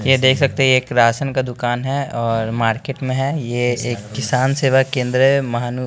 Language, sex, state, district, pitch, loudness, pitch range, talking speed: Hindi, male, Bihar, West Champaran, 130 Hz, -18 LUFS, 120-135 Hz, 205 wpm